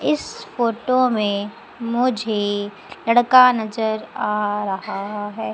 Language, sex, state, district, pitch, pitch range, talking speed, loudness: Hindi, female, Madhya Pradesh, Umaria, 220 Hz, 205-245 Hz, 95 wpm, -20 LUFS